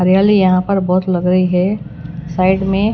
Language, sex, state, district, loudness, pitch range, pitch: Hindi, female, Chhattisgarh, Raipur, -14 LUFS, 180-195 Hz, 185 Hz